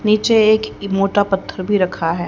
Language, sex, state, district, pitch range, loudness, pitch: Hindi, female, Haryana, Rohtak, 185-215 Hz, -16 LUFS, 200 Hz